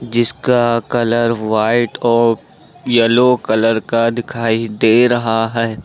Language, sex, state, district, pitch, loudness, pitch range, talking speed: Hindi, male, Uttar Pradesh, Lucknow, 115 Hz, -14 LUFS, 115-120 Hz, 115 wpm